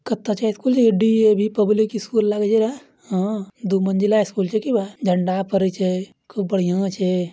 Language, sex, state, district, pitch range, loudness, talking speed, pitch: Angika, male, Bihar, Bhagalpur, 190-220 Hz, -20 LUFS, 180 wpm, 210 Hz